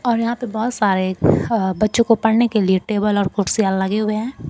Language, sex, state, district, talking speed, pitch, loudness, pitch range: Hindi, female, Bihar, Kaimur, 215 wpm, 215 Hz, -18 LUFS, 195-230 Hz